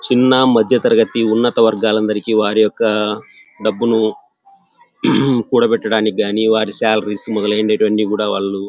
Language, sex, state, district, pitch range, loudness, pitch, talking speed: Telugu, male, Andhra Pradesh, Anantapur, 105-115 Hz, -15 LUFS, 110 Hz, 95 wpm